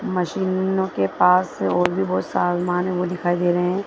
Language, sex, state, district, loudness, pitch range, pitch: Hindi, female, Bihar, Begusarai, -21 LUFS, 175-185 Hz, 180 Hz